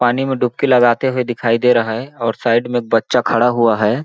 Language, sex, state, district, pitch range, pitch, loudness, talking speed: Hindi, male, Chhattisgarh, Balrampur, 115-125 Hz, 120 Hz, -15 LUFS, 235 wpm